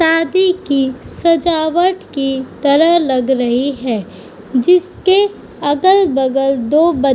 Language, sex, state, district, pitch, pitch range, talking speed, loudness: Hindi, female, Uttar Pradesh, Budaun, 290 Hz, 265-345 Hz, 100 wpm, -14 LUFS